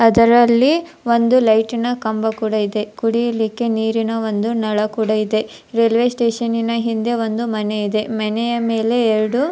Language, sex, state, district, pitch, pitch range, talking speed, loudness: Kannada, female, Karnataka, Dharwad, 225 Hz, 220-235 Hz, 145 wpm, -17 LUFS